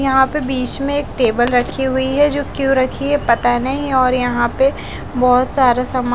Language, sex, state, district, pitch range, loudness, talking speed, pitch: Hindi, female, Bihar, West Champaran, 250-275 Hz, -16 LUFS, 205 wpm, 260 Hz